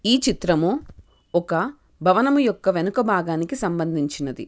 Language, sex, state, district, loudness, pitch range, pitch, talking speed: Telugu, female, Telangana, Karimnagar, -22 LUFS, 165-245 Hz, 185 Hz, 105 wpm